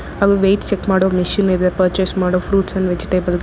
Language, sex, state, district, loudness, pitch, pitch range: Kannada, female, Karnataka, Bangalore, -16 LUFS, 190 Hz, 180-195 Hz